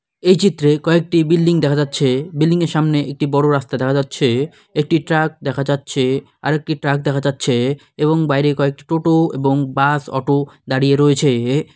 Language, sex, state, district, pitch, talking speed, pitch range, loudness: Bengali, male, West Bengal, Malda, 145 Hz, 160 wpm, 140-155 Hz, -17 LUFS